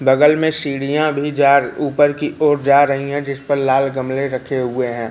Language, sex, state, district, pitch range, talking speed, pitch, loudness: Hindi, male, Madhya Pradesh, Katni, 135-145 Hz, 225 wpm, 140 Hz, -16 LUFS